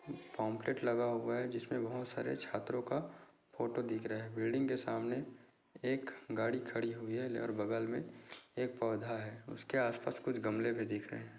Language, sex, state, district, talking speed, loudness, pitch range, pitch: Hindi, male, Chhattisgarh, Korba, 190 wpm, -39 LUFS, 110-125 Hz, 115 Hz